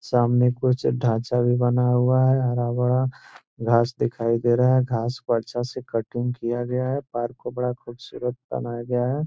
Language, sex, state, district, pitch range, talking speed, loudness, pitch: Hindi, male, Bihar, Gopalganj, 120-125 Hz, 180 wpm, -23 LUFS, 125 Hz